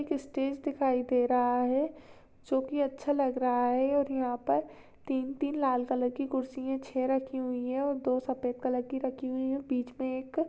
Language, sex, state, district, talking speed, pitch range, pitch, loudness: Hindi, female, Maharashtra, Chandrapur, 205 wpm, 255-275 Hz, 265 Hz, -31 LUFS